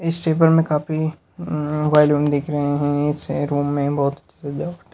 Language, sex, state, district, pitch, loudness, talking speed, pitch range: Hindi, male, Haryana, Charkhi Dadri, 150 Hz, -20 LUFS, 195 wpm, 145-155 Hz